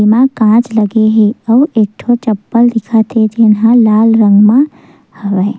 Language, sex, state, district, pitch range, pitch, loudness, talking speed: Chhattisgarhi, female, Chhattisgarh, Sukma, 215-235 Hz, 220 Hz, -10 LUFS, 160 wpm